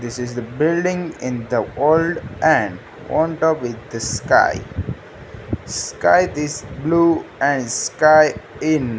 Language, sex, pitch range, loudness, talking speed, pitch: English, male, 120-160 Hz, -19 LUFS, 135 wpm, 150 Hz